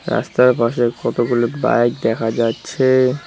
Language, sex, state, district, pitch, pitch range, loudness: Bengali, male, West Bengal, Cooch Behar, 120 Hz, 115-130 Hz, -17 LUFS